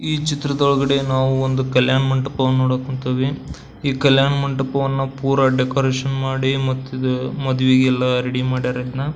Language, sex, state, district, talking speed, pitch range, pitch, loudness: Kannada, male, Karnataka, Belgaum, 120 wpm, 130-135 Hz, 135 Hz, -19 LUFS